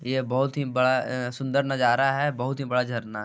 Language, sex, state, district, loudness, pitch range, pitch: Hindi, male, Jharkhand, Sahebganj, -25 LUFS, 125-135 Hz, 130 Hz